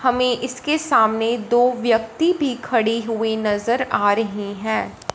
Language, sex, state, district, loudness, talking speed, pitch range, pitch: Hindi, female, Punjab, Fazilka, -20 LUFS, 140 wpm, 220-250 Hz, 230 Hz